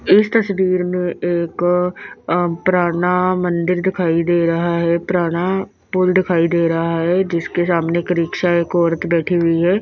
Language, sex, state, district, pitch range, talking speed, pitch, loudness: Hindi, female, Bihar, Patna, 170-180 Hz, 160 wpm, 175 Hz, -17 LUFS